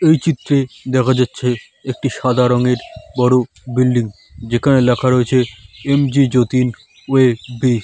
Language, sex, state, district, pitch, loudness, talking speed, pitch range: Bengali, male, West Bengal, Dakshin Dinajpur, 125 Hz, -16 LUFS, 115 wpm, 125-130 Hz